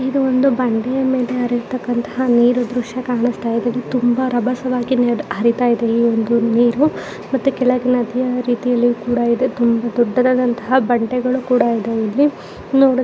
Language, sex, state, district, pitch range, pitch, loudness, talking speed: Kannada, female, Karnataka, Shimoga, 235-255 Hz, 245 Hz, -17 LUFS, 145 wpm